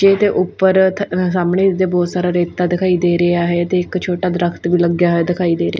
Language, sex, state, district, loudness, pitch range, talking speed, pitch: Punjabi, female, Punjab, Fazilka, -16 LUFS, 175-185 Hz, 250 wpm, 180 Hz